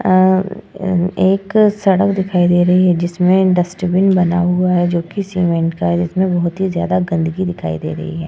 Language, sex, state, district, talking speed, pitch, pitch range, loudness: Hindi, female, Uttar Pradesh, Etah, 205 wpm, 180 Hz, 175-190 Hz, -15 LUFS